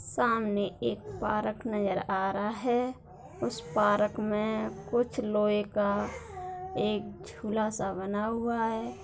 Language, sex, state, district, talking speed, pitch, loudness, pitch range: Hindi, female, Bihar, Darbhanga, 125 wpm, 215 Hz, -31 LUFS, 205-230 Hz